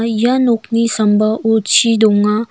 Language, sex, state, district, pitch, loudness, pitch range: Garo, female, Meghalaya, North Garo Hills, 225 Hz, -13 LUFS, 215-230 Hz